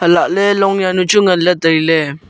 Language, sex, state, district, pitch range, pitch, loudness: Wancho, male, Arunachal Pradesh, Longding, 165-195 Hz, 180 Hz, -12 LUFS